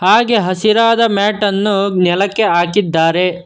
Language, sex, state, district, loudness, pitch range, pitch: Kannada, male, Karnataka, Bangalore, -13 LUFS, 180-215 Hz, 200 Hz